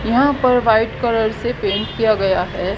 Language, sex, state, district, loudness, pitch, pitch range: Hindi, female, Haryana, Jhajjar, -17 LUFS, 225 Hz, 200-240 Hz